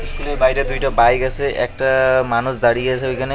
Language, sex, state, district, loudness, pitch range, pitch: Bengali, male, West Bengal, Cooch Behar, -17 LUFS, 130-135 Hz, 130 Hz